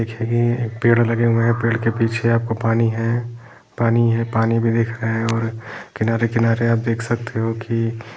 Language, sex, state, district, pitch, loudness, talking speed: Hindi, male, Bihar, Jahanabad, 115 Hz, -19 LUFS, 215 wpm